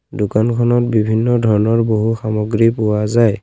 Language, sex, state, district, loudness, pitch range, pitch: Assamese, male, Assam, Kamrup Metropolitan, -15 LUFS, 105-115 Hz, 110 Hz